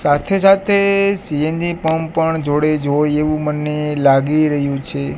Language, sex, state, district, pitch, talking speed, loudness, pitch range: Gujarati, male, Gujarat, Gandhinagar, 150 Hz, 125 wpm, -16 LUFS, 145-165 Hz